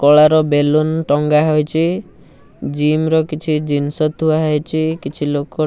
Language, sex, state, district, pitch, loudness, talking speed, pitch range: Odia, male, Odisha, Nuapada, 155 Hz, -16 LUFS, 150 wpm, 145-155 Hz